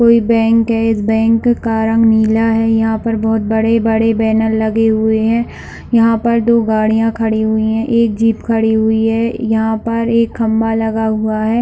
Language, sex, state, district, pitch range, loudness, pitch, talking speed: Hindi, female, Chhattisgarh, Raigarh, 220-230 Hz, -14 LUFS, 225 Hz, 180 wpm